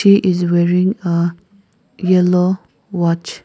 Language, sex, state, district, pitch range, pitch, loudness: English, female, Nagaland, Kohima, 175-190 Hz, 180 Hz, -16 LUFS